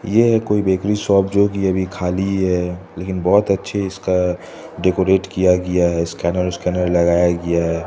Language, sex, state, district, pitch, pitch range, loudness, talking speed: Hindi, male, Odisha, Khordha, 95 Hz, 90-95 Hz, -18 LUFS, 175 wpm